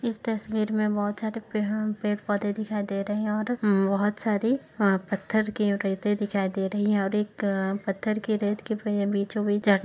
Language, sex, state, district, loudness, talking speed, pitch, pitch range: Hindi, female, Uttar Pradesh, Etah, -27 LUFS, 205 wpm, 210 Hz, 200-215 Hz